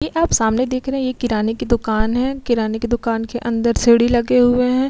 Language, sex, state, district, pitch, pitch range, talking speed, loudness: Hindi, female, Bihar, Vaishali, 240 Hz, 230-255 Hz, 245 wpm, -18 LUFS